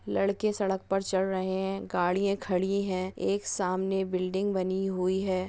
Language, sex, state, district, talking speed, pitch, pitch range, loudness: Hindi, female, West Bengal, Dakshin Dinajpur, 155 wpm, 190 Hz, 185-195 Hz, -29 LUFS